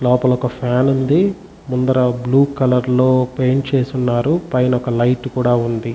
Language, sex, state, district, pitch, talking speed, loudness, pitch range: Telugu, male, Andhra Pradesh, Chittoor, 125 Hz, 160 wpm, -16 LUFS, 125-135 Hz